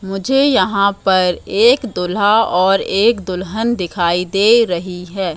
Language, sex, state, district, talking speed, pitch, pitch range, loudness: Hindi, female, Madhya Pradesh, Katni, 135 wpm, 195 Hz, 180-225 Hz, -15 LUFS